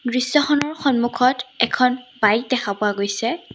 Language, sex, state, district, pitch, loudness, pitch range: Assamese, female, Assam, Sonitpur, 250 Hz, -20 LUFS, 230-255 Hz